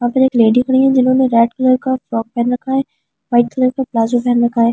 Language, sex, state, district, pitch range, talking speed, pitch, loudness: Hindi, female, Delhi, New Delhi, 235-260 Hz, 280 wpm, 250 Hz, -14 LUFS